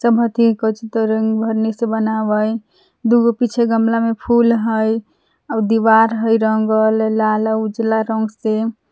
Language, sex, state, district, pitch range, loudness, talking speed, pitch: Magahi, female, Jharkhand, Palamu, 220-230 Hz, -16 LUFS, 150 wpm, 220 Hz